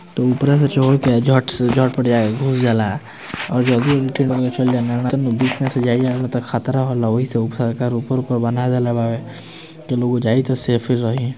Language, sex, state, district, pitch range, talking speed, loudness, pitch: Bhojpuri, male, Bihar, Gopalganj, 120-130 Hz, 205 wpm, -18 LUFS, 125 Hz